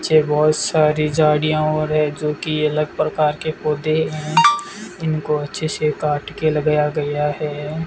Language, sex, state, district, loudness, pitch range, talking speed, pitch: Hindi, male, Rajasthan, Bikaner, -19 LUFS, 150-155 Hz, 160 wpm, 155 Hz